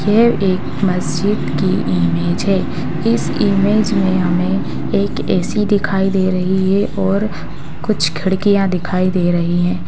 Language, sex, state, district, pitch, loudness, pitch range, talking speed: Hindi, female, Bihar, Sitamarhi, 185 Hz, -16 LUFS, 175-200 Hz, 140 wpm